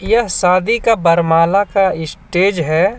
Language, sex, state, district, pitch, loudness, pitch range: Hindi, male, Jharkhand, Ranchi, 190 Hz, -14 LUFS, 170-205 Hz